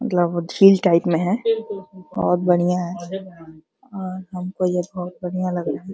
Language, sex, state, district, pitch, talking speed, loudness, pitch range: Hindi, male, Uttar Pradesh, Deoria, 180 Hz, 150 wpm, -21 LUFS, 175-190 Hz